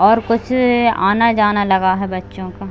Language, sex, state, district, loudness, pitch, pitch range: Hindi, female, Chhattisgarh, Bilaspur, -15 LUFS, 205 Hz, 185-230 Hz